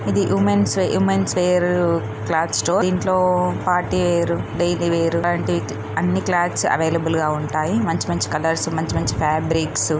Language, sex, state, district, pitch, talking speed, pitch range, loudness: Telugu, female, Telangana, Karimnagar, 160 Hz, 130 wpm, 110-175 Hz, -20 LUFS